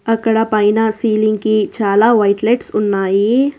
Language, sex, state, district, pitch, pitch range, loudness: Telugu, female, Telangana, Hyderabad, 215 Hz, 210-225 Hz, -14 LUFS